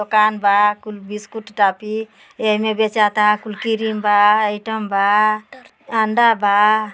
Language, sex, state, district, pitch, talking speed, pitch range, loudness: Bhojpuri, female, Uttar Pradesh, Ghazipur, 215 Hz, 120 wpm, 210-220 Hz, -17 LUFS